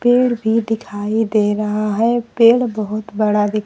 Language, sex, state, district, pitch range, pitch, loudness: Hindi, female, Bihar, Kaimur, 210-235 Hz, 220 Hz, -17 LUFS